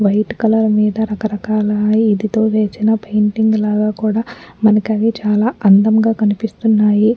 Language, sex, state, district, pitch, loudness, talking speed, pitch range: Telugu, female, Andhra Pradesh, Anantapur, 215 Hz, -15 LUFS, 115 wpm, 210-220 Hz